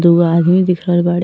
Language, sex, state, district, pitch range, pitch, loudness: Bhojpuri, female, Uttar Pradesh, Ghazipur, 170-180 Hz, 175 Hz, -13 LUFS